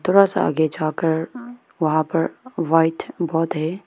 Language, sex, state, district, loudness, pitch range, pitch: Hindi, female, Arunachal Pradesh, Lower Dibang Valley, -21 LUFS, 160-185 Hz, 165 Hz